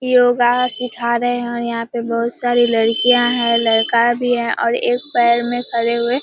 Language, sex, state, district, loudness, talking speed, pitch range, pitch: Hindi, female, Bihar, Kishanganj, -16 LUFS, 195 wpm, 235-245 Hz, 240 Hz